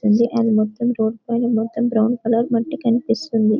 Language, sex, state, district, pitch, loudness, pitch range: Telugu, female, Telangana, Karimnagar, 230 Hz, -19 LUFS, 220-235 Hz